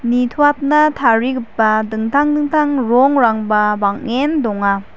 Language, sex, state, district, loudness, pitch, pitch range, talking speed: Garo, female, Meghalaya, West Garo Hills, -15 LUFS, 245 Hz, 220-285 Hz, 85 wpm